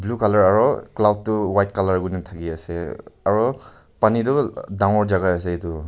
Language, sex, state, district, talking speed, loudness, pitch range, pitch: Nagamese, male, Nagaland, Kohima, 185 wpm, -20 LUFS, 90-105 Hz, 100 Hz